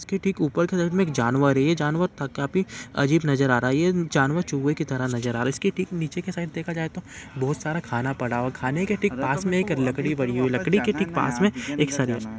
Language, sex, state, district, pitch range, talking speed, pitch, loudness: Hindi, male, Uttar Pradesh, Ghazipur, 135-180 Hz, 290 wpm, 150 Hz, -24 LUFS